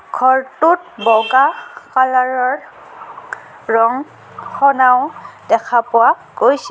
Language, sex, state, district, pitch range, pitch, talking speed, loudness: Assamese, female, Assam, Kamrup Metropolitan, 230-265 Hz, 255 Hz, 70 wpm, -14 LUFS